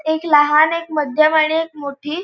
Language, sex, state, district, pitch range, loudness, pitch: Marathi, female, Goa, North and South Goa, 295-320 Hz, -15 LUFS, 310 Hz